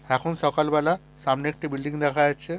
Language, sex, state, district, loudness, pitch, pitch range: Bengali, male, West Bengal, Purulia, -25 LUFS, 150 Hz, 145-155 Hz